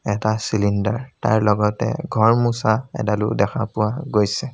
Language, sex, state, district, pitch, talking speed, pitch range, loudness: Assamese, male, Assam, Sonitpur, 110 Hz, 130 wpm, 105-120 Hz, -20 LUFS